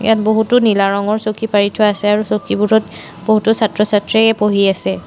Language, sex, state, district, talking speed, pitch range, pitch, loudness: Assamese, female, Assam, Sonitpur, 165 wpm, 200-220 Hz, 210 Hz, -14 LUFS